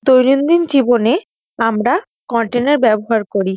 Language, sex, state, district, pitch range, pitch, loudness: Bengali, female, West Bengal, North 24 Parganas, 225-275 Hz, 245 Hz, -15 LUFS